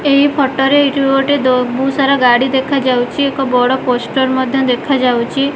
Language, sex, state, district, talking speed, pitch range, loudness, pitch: Odia, female, Odisha, Malkangiri, 175 wpm, 255-275 Hz, -13 LUFS, 270 Hz